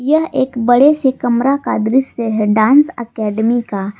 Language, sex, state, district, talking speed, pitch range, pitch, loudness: Hindi, female, Jharkhand, Palamu, 165 wpm, 220-270 Hz, 240 Hz, -14 LUFS